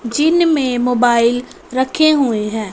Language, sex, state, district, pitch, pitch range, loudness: Hindi, female, Punjab, Fazilka, 250 Hz, 235-305 Hz, -15 LUFS